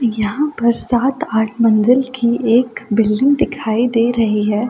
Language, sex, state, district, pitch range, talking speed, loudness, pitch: Hindi, female, Delhi, New Delhi, 220-250 Hz, 155 wpm, -16 LUFS, 235 Hz